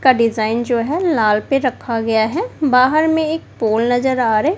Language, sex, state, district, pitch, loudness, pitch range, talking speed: Hindi, female, Bihar, Kaimur, 250 Hz, -16 LUFS, 230-310 Hz, 210 wpm